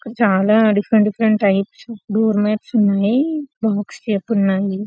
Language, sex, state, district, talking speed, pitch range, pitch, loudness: Telugu, female, Telangana, Karimnagar, 135 wpm, 205-225 Hz, 215 Hz, -17 LUFS